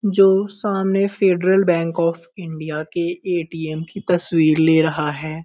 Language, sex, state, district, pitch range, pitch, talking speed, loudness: Hindi, male, Bihar, Muzaffarpur, 160-190 Hz, 170 Hz, 145 wpm, -19 LUFS